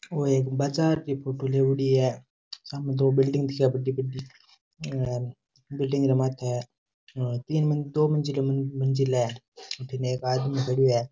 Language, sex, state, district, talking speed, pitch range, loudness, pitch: Rajasthani, male, Rajasthan, Churu, 160 wpm, 130-140 Hz, -26 LUFS, 135 Hz